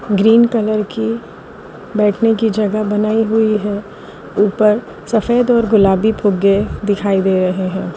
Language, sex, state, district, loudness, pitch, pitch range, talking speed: Hindi, female, Gujarat, Valsad, -15 LUFS, 210 Hz, 200-225 Hz, 135 wpm